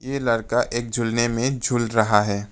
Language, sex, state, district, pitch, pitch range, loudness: Hindi, male, Arunachal Pradesh, Papum Pare, 120 Hz, 115-120 Hz, -22 LUFS